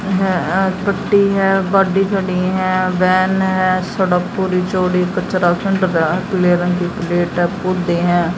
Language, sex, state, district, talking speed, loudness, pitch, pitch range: Hindi, female, Haryana, Jhajjar, 95 wpm, -16 LUFS, 185 Hz, 180-190 Hz